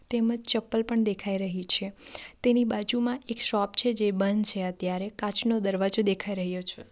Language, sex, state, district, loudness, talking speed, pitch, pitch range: Gujarati, female, Gujarat, Valsad, -24 LUFS, 175 wpm, 210 Hz, 195-230 Hz